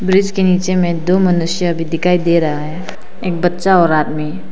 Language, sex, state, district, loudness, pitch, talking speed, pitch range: Hindi, female, Arunachal Pradesh, Papum Pare, -15 LUFS, 175 Hz, 200 wpm, 165-185 Hz